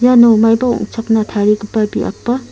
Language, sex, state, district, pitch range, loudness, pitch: Garo, female, Meghalaya, South Garo Hills, 215-245 Hz, -13 LUFS, 225 Hz